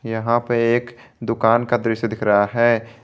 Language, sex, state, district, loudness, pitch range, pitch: Hindi, male, Jharkhand, Garhwa, -19 LUFS, 115-120 Hz, 115 Hz